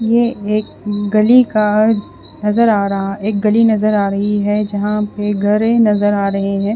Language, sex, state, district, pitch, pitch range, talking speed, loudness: Hindi, female, Odisha, Khordha, 210 Hz, 205-215 Hz, 185 wpm, -15 LUFS